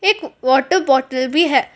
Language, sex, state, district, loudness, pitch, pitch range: Hindi, female, Karnataka, Bangalore, -16 LUFS, 295 Hz, 265-370 Hz